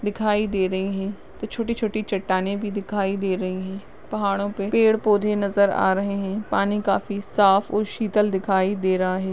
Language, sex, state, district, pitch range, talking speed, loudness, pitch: Hindi, female, Maharashtra, Chandrapur, 195-210 Hz, 185 wpm, -23 LUFS, 200 Hz